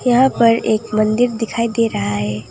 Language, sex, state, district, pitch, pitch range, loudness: Hindi, female, West Bengal, Alipurduar, 225 Hz, 215-235 Hz, -16 LUFS